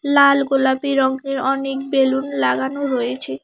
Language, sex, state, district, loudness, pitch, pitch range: Bengali, female, West Bengal, Alipurduar, -18 LUFS, 270 Hz, 260-275 Hz